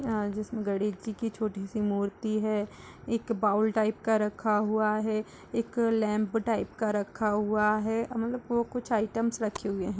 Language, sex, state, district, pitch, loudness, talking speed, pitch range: Hindi, female, Uttar Pradesh, Etah, 215 Hz, -29 LUFS, 180 wpm, 210-225 Hz